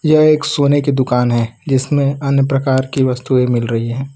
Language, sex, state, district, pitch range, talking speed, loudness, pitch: Hindi, male, Gujarat, Valsad, 125-140 Hz, 200 wpm, -15 LUFS, 135 Hz